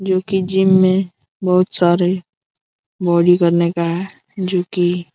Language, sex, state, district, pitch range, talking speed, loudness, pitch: Hindi, male, Jharkhand, Jamtara, 175-190 Hz, 150 wpm, -16 LUFS, 180 Hz